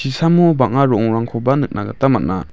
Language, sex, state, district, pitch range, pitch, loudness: Garo, male, Meghalaya, West Garo Hills, 115-140 Hz, 130 Hz, -16 LUFS